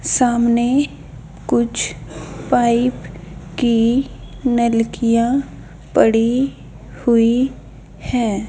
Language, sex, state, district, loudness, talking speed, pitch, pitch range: Hindi, female, Haryana, Charkhi Dadri, -17 LUFS, 55 wpm, 235 Hz, 165-245 Hz